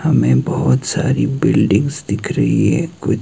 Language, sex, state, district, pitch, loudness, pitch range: Hindi, male, Himachal Pradesh, Shimla, 135 Hz, -16 LUFS, 100-145 Hz